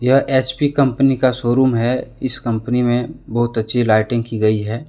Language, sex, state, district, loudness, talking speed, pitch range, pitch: Hindi, male, Jharkhand, Deoghar, -17 LUFS, 185 wpm, 115-130 Hz, 120 Hz